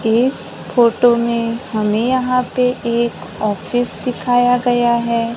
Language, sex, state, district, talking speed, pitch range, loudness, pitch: Hindi, female, Maharashtra, Gondia, 125 wpm, 230-245 Hz, -16 LUFS, 235 Hz